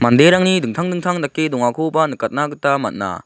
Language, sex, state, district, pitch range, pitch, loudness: Garo, male, Meghalaya, South Garo Hills, 140-175 Hz, 155 Hz, -17 LUFS